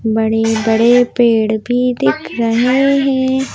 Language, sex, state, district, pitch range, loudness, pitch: Hindi, female, Madhya Pradesh, Bhopal, 220-250 Hz, -13 LUFS, 235 Hz